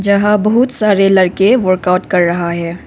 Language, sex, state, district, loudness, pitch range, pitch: Hindi, female, Arunachal Pradesh, Papum Pare, -12 LUFS, 180-210 Hz, 190 Hz